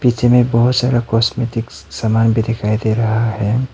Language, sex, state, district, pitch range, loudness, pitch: Hindi, male, Arunachal Pradesh, Papum Pare, 110-120 Hz, -16 LUFS, 115 Hz